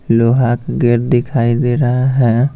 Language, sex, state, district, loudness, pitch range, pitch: Hindi, male, Bihar, Patna, -14 LUFS, 120-130 Hz, 120 Hz